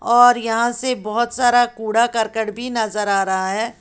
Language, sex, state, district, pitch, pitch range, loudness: Hindi, female, Uttar Pradesh, Lalitpur, 230 Hz, 220-240 Hz, -18 LUFS